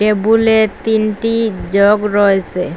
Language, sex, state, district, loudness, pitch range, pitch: Bengali, female, Assam, Hailakandi, -13 LUFS, 200-220 Hz, 215 Hz